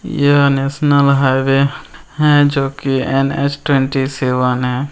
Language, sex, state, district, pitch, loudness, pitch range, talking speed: Hindi, male, Bihar, Muzaffarpur, 140 Hz, -14 LUFS, 135-145 Hz, 135 wpm